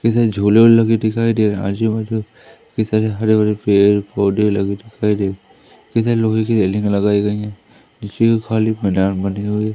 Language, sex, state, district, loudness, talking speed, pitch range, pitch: Hindi, male, Madhya Pradesh, Umaria, -16 LUFS, 185 wpm, 100-110 Hz, 105 Hz